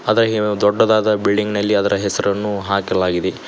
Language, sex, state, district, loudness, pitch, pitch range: Kannada, male, Karnataka, Koppal, -17 LUFS, 105 Hz, 100-105 Hz